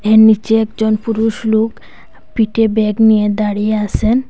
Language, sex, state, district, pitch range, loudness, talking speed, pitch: Bengali, female, Assam, Hailakandi, 215-225 Hz, -14 LUFS, 125 wpm, 220 Hz